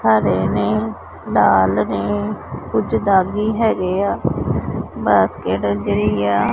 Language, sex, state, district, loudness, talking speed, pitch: Punjabi, male, Punjab, Pathankot, -18 LUFS, 90 wpm, 105 Hz